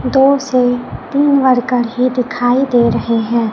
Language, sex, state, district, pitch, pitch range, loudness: Hindi, male, Chhattisgarh, Raipur, 250 Hz, 245-265 Hz, -14 LUFS